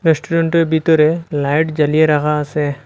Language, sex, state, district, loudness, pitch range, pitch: Bengali, male, Assam, Hailakandi, -15 LUFS, 150-160 Hz, 155 Hz